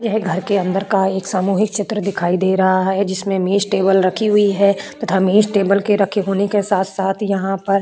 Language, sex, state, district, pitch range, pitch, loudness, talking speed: Hindi, female, Uttar Pradesh, Budaun, 190-205 Hz, 195 Hz, -17 LUFS, 215 wpm